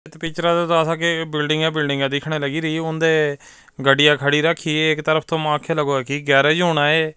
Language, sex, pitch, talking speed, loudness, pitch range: Punjabi, male, 155 Hz, 185 wpm, -18 LUFS, 145-160 Hz